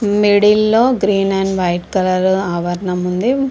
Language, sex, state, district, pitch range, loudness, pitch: Telugu, female, Andhra Pradesh, Visakhapatnam, 180-210 Hz, -15 LUFS, 195 Hz